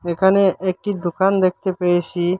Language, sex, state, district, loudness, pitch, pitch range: Bengali, male, Assam, Hailakandi, -19 LUFS, 185 Hz, 175-190 Hz